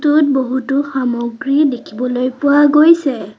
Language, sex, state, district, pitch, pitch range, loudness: Assamese, female, Assam, Sonitpur, 270 Hz, 255-290 Hz, -14 LUFS